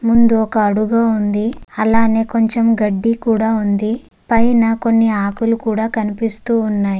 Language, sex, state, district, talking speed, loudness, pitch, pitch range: Telugu, female, Andhra Pradesh, Guntur, 310 wpm, -16 LUFS, 225 Hz, 215-230 Hz